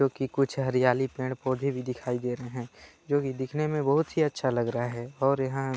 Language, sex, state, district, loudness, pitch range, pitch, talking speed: Hindi, male, Chhattisgarh, Balrampur, -28 LUFS, 125-140 Hz, 130 Hz, 230 wpm